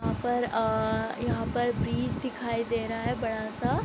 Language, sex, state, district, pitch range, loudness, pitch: Hindi, female, Bihar, Sitamarhi, 220-240 Hz, -29 LUFS, 230 Hz